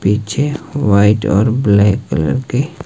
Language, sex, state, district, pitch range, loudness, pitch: Hindi, male, Himachal Pradesh, Shimla, 100-140 Hz, -14 LUFS, 115 Hz